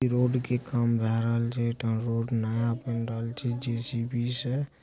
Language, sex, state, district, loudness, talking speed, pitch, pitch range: Angika, male, Bihar, Supaul, -29 LUFS, 160 wpm, 120 Hz, 115-125 Hz